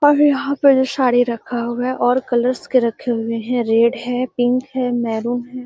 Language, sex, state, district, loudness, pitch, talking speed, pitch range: Magahi, female, Bihar, Gaya, -18 LUFS, 245 Hz, 210 wpm, 240-255 Hz